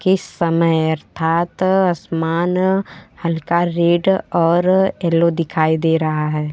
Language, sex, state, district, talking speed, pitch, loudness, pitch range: Hindi, female, Bihar, Gopalganj, 110 wpm, 170 Hz, -17 LUFS, 160-180 Hz